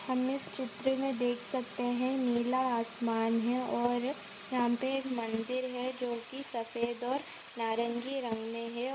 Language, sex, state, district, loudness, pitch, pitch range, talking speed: Hindi, female, Chhattisgarh, Balrampur, -34 LUFS, 245 Hz, 230-260 Hz, 175 wpm